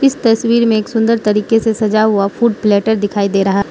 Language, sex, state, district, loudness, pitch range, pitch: Hindi, female, Manipur, Imphal West, -13 LUFS, 205-230 Hz, 220 Hz